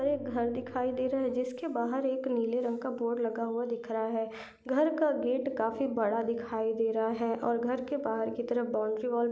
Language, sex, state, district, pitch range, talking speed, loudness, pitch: Hindi, female, Uttarakhand, Uttarkashi, 230-255 Hz, 230 wpm, -32 LUFS, 240 Hz